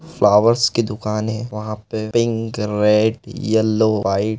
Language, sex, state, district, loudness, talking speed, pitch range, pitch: Hindi, male, Chhattisgarh, Balrampur, -18 LUFS, 150 wpm, 105-115 Hz, 110 Hz